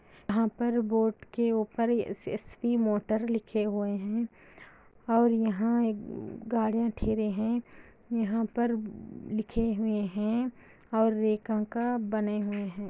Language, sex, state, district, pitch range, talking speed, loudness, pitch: Hindi, female, Andhra Pradesh, Anantapur, 215-230 Hz, 115 wpm, -30 LUFS, 220 Hz